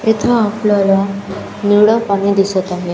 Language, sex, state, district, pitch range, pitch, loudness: Marathi, female, Maharashtra, Chandrapur, 195-210 Hz, 200 Hz, -14 LUFS